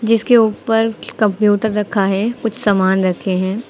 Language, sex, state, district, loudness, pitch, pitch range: Hindi, female, Uttar Pradesh, Lucknow, -16 LUFS, 215 Hz, 195-225 Hz